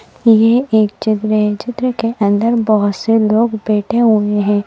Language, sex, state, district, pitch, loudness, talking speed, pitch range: Hindi, female, Madhya Pradesh, Bhopal, 220 Hz, -14 LUFS, 165 wpm, 210-230 Hz